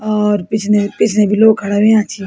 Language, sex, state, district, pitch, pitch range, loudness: Garhwali, female, Uttarakhand, Tehri Garhwal, 210 Hz, 205-215 Hz, -13 LUFS